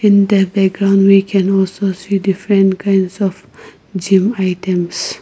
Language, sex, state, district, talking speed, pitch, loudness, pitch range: English, female, Nagaland, Kohima, 140 wpm, 195 Hz, -14 LUFS, 190-200 Hz